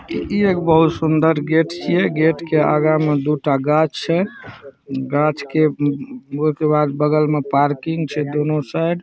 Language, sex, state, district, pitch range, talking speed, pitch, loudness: Hindi, male, Bihar, Saharsa, 145-160 Hz, 180 wpm, 155 Hz, -18 LUFS